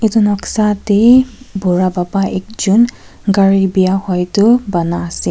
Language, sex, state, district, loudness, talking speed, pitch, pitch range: Nagamese, female, Nagaland, Kohima, -13 LUFS, 125 wpm, 195 Hz, 185-220 Hz